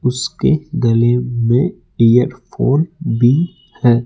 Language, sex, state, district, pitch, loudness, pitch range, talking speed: Hindi, male, Rajasthan, Jaipur, 125 Hz, -15 LUFS, 120-155 Hz, 90 wpm